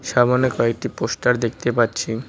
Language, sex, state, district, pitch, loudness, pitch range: Bengali, male, West Bengal, Cooch Behar, 120 Hz, -20 LUFS, 115-125 Hz